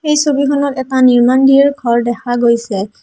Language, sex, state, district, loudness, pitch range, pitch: Assamese, female, Assam, Hailakandi, -12 LUFS, 240-280 Hz, 260 Hz